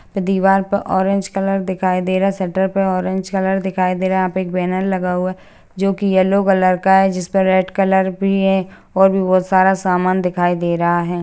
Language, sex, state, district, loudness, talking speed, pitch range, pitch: Hindi, female, Bihar, Gaya, -16 LUFS, 215 wpm, 185-195 Hz, 190 Hz